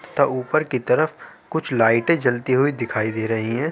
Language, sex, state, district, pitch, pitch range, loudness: Hindi, male, Uttar Pradesh, Jalaun, 125 Hz, 115-155 Hz, -21 LUFS